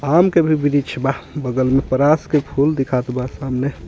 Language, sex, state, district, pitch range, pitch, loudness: Bhojpuri, male, Jharkhand, Palamu, 130-150 Hz, 140 Hz, -18 LUFS